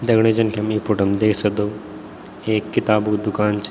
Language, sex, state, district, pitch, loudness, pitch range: Garhwali, male, Uttarakhand, Tehri Garhwal, 105 Hz, -20 LUFS, 105-110 Hz